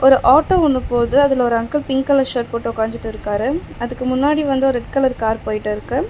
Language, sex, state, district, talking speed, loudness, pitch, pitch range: Tamil, female, Tamil Nadu, Chennai, 195 wpm, -17 LUFS, 255 Hz, 230-275 Hz